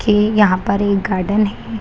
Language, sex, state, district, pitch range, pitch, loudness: Hindi, female, Bihar, Kishanganj, 200-210 Hz, 205 Hz, -16 LUFS